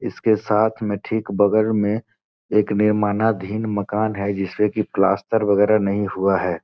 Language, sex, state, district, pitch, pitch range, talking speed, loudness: Hindi, male, Bihar, Gopalganj, 105 Hz, 100-110 Hz, 155 wpm, -20 LUFS